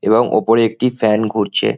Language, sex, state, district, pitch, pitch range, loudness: Bengali, male, West Bengal, Jhargram, 110 Hz, 110-115 Hz, -15 LUFS